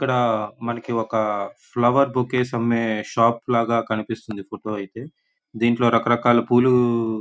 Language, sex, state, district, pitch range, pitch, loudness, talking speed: Telugu, male, Andhra Pradesh, Guntur, 110-120 Hz, 115 Hz, -21 LUFS, 135 wpm